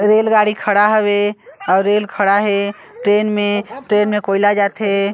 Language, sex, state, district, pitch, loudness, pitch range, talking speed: Chhattisgarhi, male, Chhattisgarh, Sarguja, 205 Hz, -15 LUFS, 200-210 Hz, 150 wpm